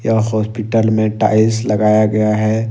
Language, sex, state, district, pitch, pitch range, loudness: Hindi, male, Jharkhand, Ranchi, 110 Hz, 105-110 Hz, -15 LUFS